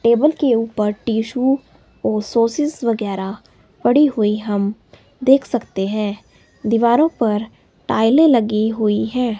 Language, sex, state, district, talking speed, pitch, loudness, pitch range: Hindi, female, Himachal Pradesh, Shimla, 120 wpm, 225 Hz, -18 LUFS, 210-255 Hz